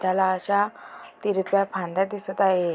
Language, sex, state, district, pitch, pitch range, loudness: Marathi, female, Maharashtra, Aurangabad, 190 Hz, 185-200 Hz, -24 LUFS